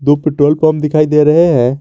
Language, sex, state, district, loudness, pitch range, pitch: Hindi, male, Jharkhand, Garhwa, -11 LUFS, 145-155 Hz, 150 Hz